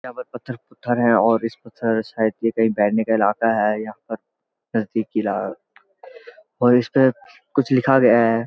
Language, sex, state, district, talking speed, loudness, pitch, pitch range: Hindi, male, Uttarakhand, Uttarkashi, 185 wpm, -19 LUFS, 115 Hz, 110-125 Hz